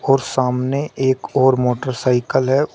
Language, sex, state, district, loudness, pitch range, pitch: Hindi, male, Uttar Pradesh, Shamli, -18 LUFS, 125-135 Hz, 130 Hz